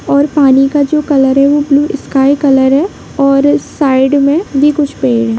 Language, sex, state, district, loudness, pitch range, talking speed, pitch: Hindi, female, Bihar, Sitamarhi, -10 LUFS, 270-290 Hz, 165 wpm, 280 Hz